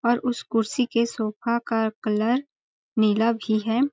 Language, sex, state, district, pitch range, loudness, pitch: Hindi, female, Chhattisgarh, Balrampur, 220-240 Hz, -24 LUFS, 230 Hz